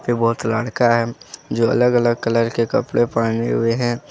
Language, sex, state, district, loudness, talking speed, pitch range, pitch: Hindi, male, Jharkhand, Deoghar, -19 LUFS, 175 wpm, 115-120 Hz, 115 Hz